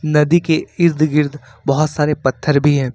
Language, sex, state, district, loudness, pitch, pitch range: Hindi, male, Jharkhand, Ranchi, -16 LUFS, 150 Hz, 140-155 Hz